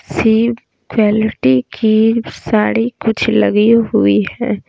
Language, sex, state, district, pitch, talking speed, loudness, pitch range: Hindi, female, Bihar, Patna, 220 Hz, 100 wpm, -14 LUFS, 210-230 Hz